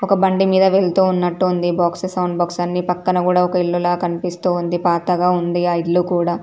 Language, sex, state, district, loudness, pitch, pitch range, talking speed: Telugu, female, Telangana, Karimnagar, -17 LUFS, 180 Hz, 175-180 Hz, 185 wpm